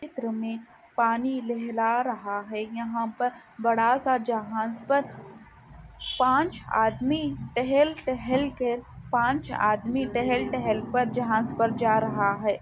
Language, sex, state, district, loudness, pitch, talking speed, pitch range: Hindi, female, Jharkhand, Sahebganj, -26 LUFS, 235 Hz, 130 wpm, 225-255 Hz